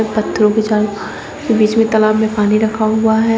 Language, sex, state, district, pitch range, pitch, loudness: Hindi, female, Uttar Pradesh, Shamli, 215-220 Hz, 220 Hz, -14 LUFS